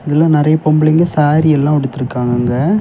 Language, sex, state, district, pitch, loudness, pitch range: Tamil, male, Tamil Nadu, Kanyakumari, 150 Hz, -13 LUFS, 135-155 Hz